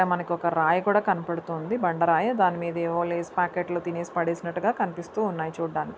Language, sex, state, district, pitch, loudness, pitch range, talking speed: Telugu, female, Andhra Pradesh, Anantapur, 170 Hz, -26 LUFS, 170-180 Hz, 150 wpm